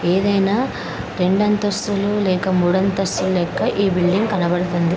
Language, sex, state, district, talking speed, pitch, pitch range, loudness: Telugu, female, Andhra Pradesh, Krishna, 120 wpm, 190 Hz, 180-205 Hz, -19 LUFS